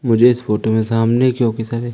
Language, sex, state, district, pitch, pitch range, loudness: Hindi, male, Madhya Pradesh, Umaria, 115 Hz, 110-120 Hz, -16 LUFS